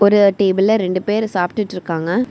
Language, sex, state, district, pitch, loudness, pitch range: Tamil, female, Tamil Nadu, Kanyakumari, 200 Hz, -17 LUFS, 185-215 Hz